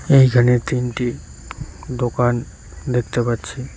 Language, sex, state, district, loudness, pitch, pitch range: Bengali, male, West Bengal, Cooch Behar, -19 LUFS, 125 Hz, 120-125 Hz